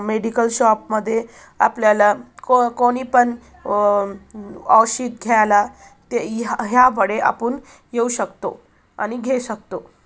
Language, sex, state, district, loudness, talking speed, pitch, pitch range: Marathi, female, Maharashtra, Aurangabad, -18 LUFS, 100 wpm, 225 Hz, 205-245 Hz